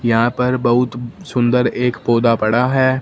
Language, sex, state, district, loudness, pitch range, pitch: Hindi, male, Punjab, Fazilka, -16 LUFS, 120-125 Hz, 120 Hz